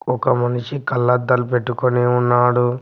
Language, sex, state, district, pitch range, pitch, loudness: Telugu, male, Telangana, Mahabubabad, 120-125 Hz, 125 Hz, -18 LUFS